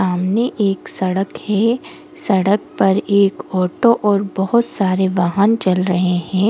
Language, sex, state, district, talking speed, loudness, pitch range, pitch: Hindi, female, Goa, North and South Goa, 140 wpm, -17 LUFS, 185-210 Hz, 195 Hz